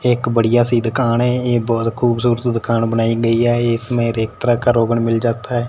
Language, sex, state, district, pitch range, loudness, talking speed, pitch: Hindi, male, Punjab, Fazilka, 115-120 Hz, -16 LUFS, 220 wpm, 115 Hz